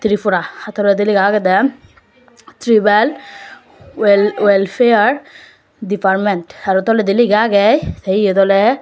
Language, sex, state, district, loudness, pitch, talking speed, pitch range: Chakma, female, Tripura, West Tripura, -14 LUFS, 205 Hz, 110 wpm, 195-225 Hz